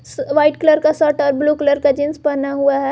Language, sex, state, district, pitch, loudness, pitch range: Hindi, female, Jharkhand, Garhwa, 290 Hz, -16 LUFS, 280-300 Hz